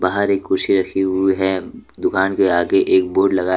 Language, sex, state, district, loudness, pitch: Hindi, male, Jharkhand, Deoghar, -17 LUFS, 95 Hz